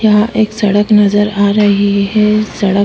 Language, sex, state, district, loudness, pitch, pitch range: Hindi, female, Uttar Pradesh, Etah, -11 LUFS, 210 Hz, 200-215 Hz